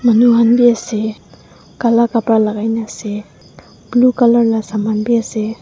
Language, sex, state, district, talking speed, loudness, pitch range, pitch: Nagamese, female, Nagaland, Dimapur, 140 wpm, -14 LUFS, 215-235 Hz, 225 Hz